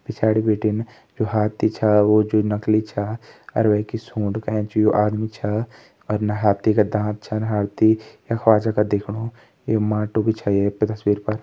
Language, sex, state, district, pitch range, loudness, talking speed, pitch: Hindi, male, Uttarakhand, Tehri Garhwal, 105-110 Hz, -21 LUFS, 180 wpm, 110 Hz